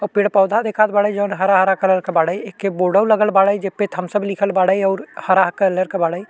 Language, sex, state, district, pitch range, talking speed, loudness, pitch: Bhojpuri, male, Uttar Pradesh, Deoria, 185-205 Hz, 220 wpm, -17 LUFS, 195 Hz